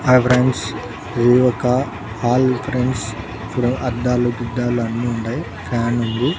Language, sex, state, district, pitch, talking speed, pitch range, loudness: Telugu, male, Andhra Pradesh, Annamaya, 120 Hz, 120 wpm, 115-125 Hz, -19 LUFS